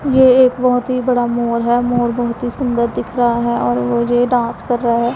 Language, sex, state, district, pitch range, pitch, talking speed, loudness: Hindi, female, Punjab, Pathankot, 235-250 Hz, 240 Hz, 245 wpm, -15 LUFS